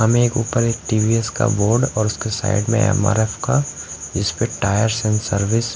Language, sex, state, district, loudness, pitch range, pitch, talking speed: Hindi, male, Odisha, Khordha, -19 LUFS, 105-115 Hz, 110 Hz, 210 wpm